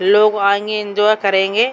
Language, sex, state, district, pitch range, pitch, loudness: Hindi, female, Jharkhand, Sahebganj, 200-215 Hz, 210 Hz, -15 LUFS